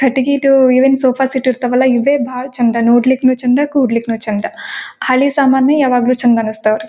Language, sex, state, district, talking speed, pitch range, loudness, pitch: Kannada, female, Karnataka, Gulbarga, 155 wpm, 240-270 Hz, -13 LUFS, 255 Hz